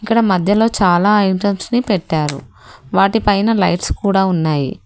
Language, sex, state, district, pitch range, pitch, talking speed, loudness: Telugu, female, Telangana, Hyderabad, 175-210 Hz, 195 Hz, 125 wpm, -15 LUFS